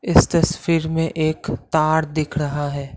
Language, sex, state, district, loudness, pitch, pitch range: Hindi, male, Assam, Kamrup Metropolitan, -20 LUFS, 155 Hz, 150-160 Hz